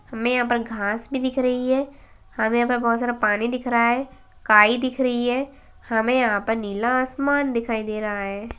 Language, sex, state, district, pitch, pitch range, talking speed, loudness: Hindi, female, Chhattisgarh, Bastar, 240 Hz, 225-255 Hz, 210 wpm, -22 LUFS